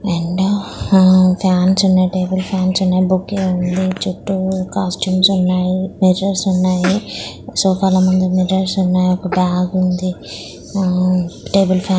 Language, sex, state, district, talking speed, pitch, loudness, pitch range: Telugu, male, Telangana, Nalgonda, 130 wpm, 185 Hz, -15 LUFS, 185-190 Hz